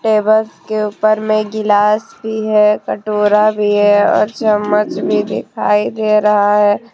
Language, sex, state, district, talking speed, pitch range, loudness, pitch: Hindi, female, Jharkhand, Deoghar, 140 wpm, 210-215 Hz, -14 LUFS, 210 Hz